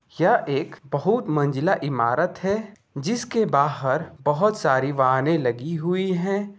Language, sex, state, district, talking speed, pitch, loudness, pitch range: Hindi, male, Bihar, Gopalganj, 130 wpm, 160 Hz, -23 LUFS, 140-195 Hz